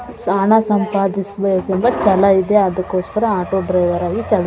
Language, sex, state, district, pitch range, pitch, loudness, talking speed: Kannada, female, Karnataka, Dharwad, 185-210 Hz, 195 Hz, -16 LUFS, 135 wpm